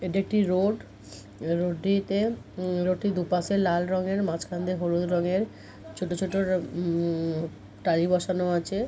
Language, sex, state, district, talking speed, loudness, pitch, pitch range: Bengali, female, West Bengal, Dakshin Dinajpur, 140 wpm, -27 LUFS, 180 Hz, 170-195 Hz